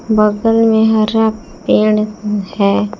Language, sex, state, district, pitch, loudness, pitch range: Hindi, female, Jharkhand, Palamu, 215 Hz, -13 LUFS, 210-220 Hz